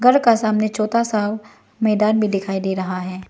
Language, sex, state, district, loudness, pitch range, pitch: Hindi, female, Arunachal Pradesh, Lower Dibang Valley, -19 LUFS, 195-220 Hz, 215 Hz